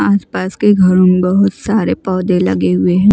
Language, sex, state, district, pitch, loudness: Hindi, female, Maharashtra, Mumbai Suburban, 185 Hz, -13 LUFS